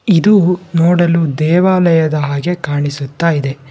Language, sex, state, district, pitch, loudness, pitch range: Kannada, male, Karnataka, Bangalore, 165 Hz, -13 LUFS, 145-175 Hz